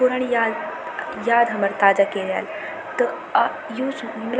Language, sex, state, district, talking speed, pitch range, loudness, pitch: Garhwali, female, Uttarakhand, Tehri Garhwal, 165 wpm, 215-260 Hz, -22 LUFS, 235 Hz